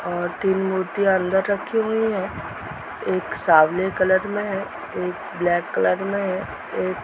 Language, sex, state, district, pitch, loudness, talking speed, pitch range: Hindi, female, Bihar, Purnia, 190 Hz, -22 LUFS, 160 wpm, 175-195 Hz